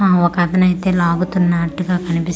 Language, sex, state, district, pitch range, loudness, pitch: Telugu, female, Andhra Pradesh, Manyam, 175-185 Hz, -16 LUFS, 175 Hz